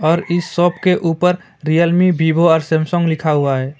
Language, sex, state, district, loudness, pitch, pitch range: Hindi, male, West Bengal, Alipurduar, -15 LUFS, 165 Hz, 160-175 Hz